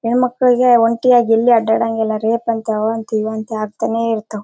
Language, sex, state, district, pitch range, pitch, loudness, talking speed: Kannada, female, Karnataka, Bellary, 220-235 Hz, 225 Hz, -16 LUFS, 150 wpm